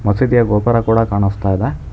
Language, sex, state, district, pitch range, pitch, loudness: Kannada, male, Karnataka, Bangalore, 100-120 Hz, 110 Hz, -15 LUFS